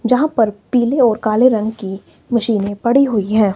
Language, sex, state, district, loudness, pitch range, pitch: Hindi, female, Himachal Pradesh, Shimla, -15 LUFS, 210-245 Hz, 225 Hz